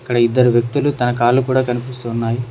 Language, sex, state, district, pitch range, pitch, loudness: Telugu, male, Telangana, Mahabubabad, 120-130 Hz, 125 Hz, -17 LUFS